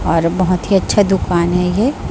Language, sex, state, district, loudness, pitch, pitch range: Hindi, female, Chhattisgarh, Raipur, -15 LUFS, 185 Hz, 175-195 Hz